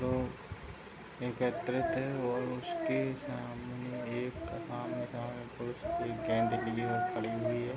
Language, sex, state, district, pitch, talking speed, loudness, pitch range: Hindi, male, Bihar, Madhepura, 125 Hz, 115 wpm, -36 LUFS, 120-125 Hz